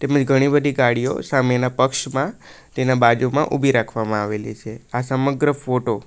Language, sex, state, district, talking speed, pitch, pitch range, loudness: Gujarati, male, Gujarat, Valsad, 150 wpm, 130 Hz, 120-140 Hz, -19 LUFS